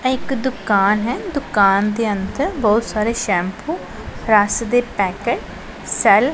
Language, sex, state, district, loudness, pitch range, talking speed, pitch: Punjabi, female, Punjab, Pathankot, -18 LUFS, 205-255 Hz, 130 wpm, 220 Hz